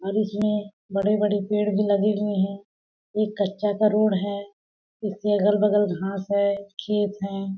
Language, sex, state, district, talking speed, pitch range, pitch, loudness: Hindi, female, Chhattisgarh, Balrampur, 150 wpm, 200-210 Hz, 205 Hz, -24 LUFS